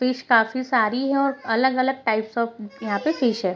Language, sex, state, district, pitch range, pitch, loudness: Hindi, female, Bihar, Sitamarhi, 220-260 Hz, 245 Hz, -22 LUFS